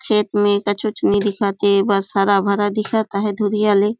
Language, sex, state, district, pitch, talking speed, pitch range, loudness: Surgujia, female, Chhattisgarh, Sarguja, 205 Hz, 180 wpm, 200-210 Hz, -18 LUFS